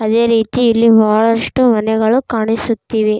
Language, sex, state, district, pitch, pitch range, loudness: Kannada, female, Karnataka, Raichur, 225 Hz, 220-230 Hz, -13 LUFS